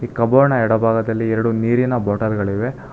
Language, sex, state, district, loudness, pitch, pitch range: Kannada, male, Karnataka, Bangalore, -17 LUFS, 115 Hz, 110-120 Hz